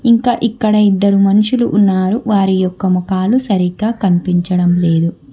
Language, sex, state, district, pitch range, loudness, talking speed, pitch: Telugu, female, Telangana, Hyderabad, 180-220 Hz, -13 LUFS, 125 wpm, 195 Hz